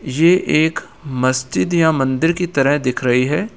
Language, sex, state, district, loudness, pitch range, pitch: Hindi, male, Bihar, East Champaran, -16 LUFS, 130-165 Hz, 145 Hz